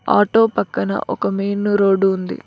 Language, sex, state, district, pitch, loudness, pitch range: Telugu, female, Telangana, Mahabubabad, 200 Hz, -17 LUFS, 195-205 Hz